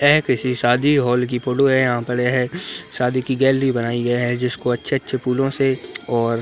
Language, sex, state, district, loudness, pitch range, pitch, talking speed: Hindi, male, Uttarakhand, Uttarkashi, -19 LUFS, 120-135 Hz, 125 Hz, 205 wpm